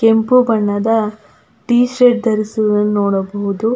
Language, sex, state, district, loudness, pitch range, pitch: Kannada, female, Karnataka, Belgaum, -15 LUFS, 205-230 Hz, 220 Hz